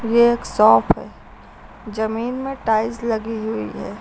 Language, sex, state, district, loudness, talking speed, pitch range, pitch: Hindi, female, Uttar Pradesh, Lucknow, -19 LUFS, 150 wpm, 220-235 Hz, 225 Hz